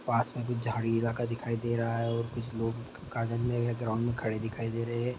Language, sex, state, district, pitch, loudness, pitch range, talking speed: Maithili, male, Bihar, Araria, 115 Hz, -32 LUFS, 115-120 Hz, 255 wpm